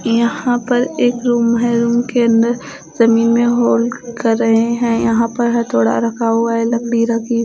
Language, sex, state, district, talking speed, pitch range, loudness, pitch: Hindi, female, Bihar, Katihar, 185 wpm, 230-240 Hz, -15 LUFS, 235 Hz